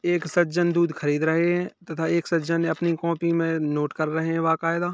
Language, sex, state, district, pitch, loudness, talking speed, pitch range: Hindi, male, Uttar Pradesh, Jalaun, 165 Hz, -24 LUFS, 230 wpm, 160-170 Hz